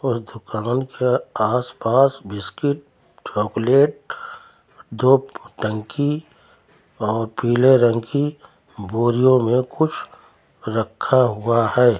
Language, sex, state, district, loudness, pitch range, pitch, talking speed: Hindi, male, Uttar Pradesh, Lucknow, -20 LUFS, 115-140 Hz, 125 Hz, 90 wpm